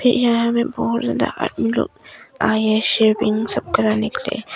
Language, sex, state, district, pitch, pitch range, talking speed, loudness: Hindi, female, Arunachal Pradesh, Longding, 225 Hz, 215-240 Hz, 170 wpm, -19 LUFS